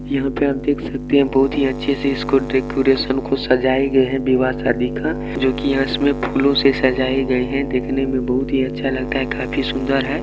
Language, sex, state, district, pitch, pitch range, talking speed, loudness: Maithili, male, Bihar, Supaul, 135 Hz, 130-135 Hz, 215 wpm, -18 LUFS